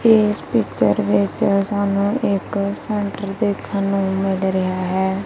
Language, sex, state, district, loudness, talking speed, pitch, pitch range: Punjabi, female, Punjab, Kapurthala, -19 LUFS, 125 wpm, 200 Hz, 190-205 Hz